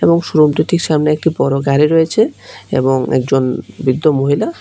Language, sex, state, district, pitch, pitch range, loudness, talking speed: Bengali, male, Tripura, West Tripura, 150 Hz, 135-165 Hz, -14 LUFS, 145 wpm